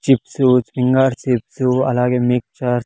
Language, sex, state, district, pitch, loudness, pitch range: Telugu, male, Andhra Pradesh, Sri Satya Sai, 125 Hz, -17 LUFS, 125-130 Hz